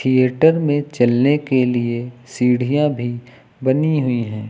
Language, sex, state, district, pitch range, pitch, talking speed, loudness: Hindi, male, Uttar Pradesh, Lucknow, 120-145 Hz, 130 Hz, 135 wpm, -18 LUFS